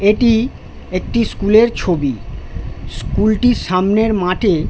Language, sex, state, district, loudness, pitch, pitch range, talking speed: Bengali, male, West Bengal, Jhargram, -15 LUFS, 205 Hz, 175-225 Hz, 125 wpm